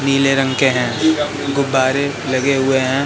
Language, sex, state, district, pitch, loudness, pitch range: Hindi, male, Madhya Pradesh, Katni, 135 Hz, -16 LUFS, 130-140 Hz